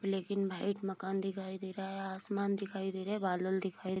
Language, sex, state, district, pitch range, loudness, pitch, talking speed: Hindi, female, Bihar, Vaishali, 190-195 Hz, -37 LUFS, 195 Hz, 240 wpm